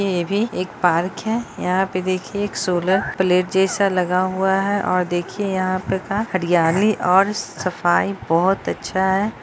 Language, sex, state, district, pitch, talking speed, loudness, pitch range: Hindi, female, Bihar, Araria, 185 Hz, 160 wpm, -20 LUFS, 180-195 Hz